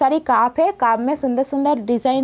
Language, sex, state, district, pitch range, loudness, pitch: Hindi, female, Bihar, East Champaran, 240-290 Hz, -18 LUFS, 265 Hz